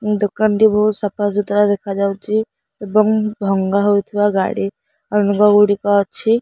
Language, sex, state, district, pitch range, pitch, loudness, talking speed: Odia, female, Odisha, Khordha, 200-210 Hz, 205 Hz, -16 LUFS, 110 wpm